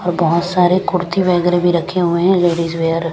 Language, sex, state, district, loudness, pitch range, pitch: Hindi, female, Punjab, Kapurthala, -15 LUFS, 170-180 Hz, 175 Hz